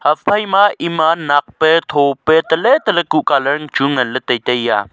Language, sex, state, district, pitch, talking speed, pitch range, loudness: Wancho, male, Arunachal Pradesh, Longding, 150 Hz, 170 wpm, 130-160 Hz, -14 LUFS